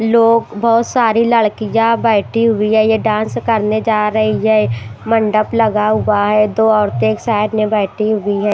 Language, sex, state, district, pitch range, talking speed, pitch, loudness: Hindi, female, Himachal Pradesh, Shimla, 210-225 Hz, 175 wpm, 215 Hz, -14 LUFS